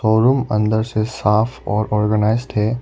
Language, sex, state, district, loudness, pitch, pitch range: Hindi, male, Arunachal Pradesh, Lower Dibang Valley, -18 LUFS, 110 Hz, 105-115 Hz